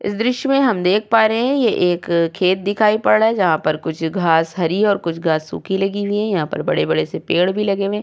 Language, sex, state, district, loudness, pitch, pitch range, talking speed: Hindi, female, Uttar Pradesh, Jyotiba Phule Nagar, -17 LUFS, 190 Hz, 165-210 Hz, 270 wpm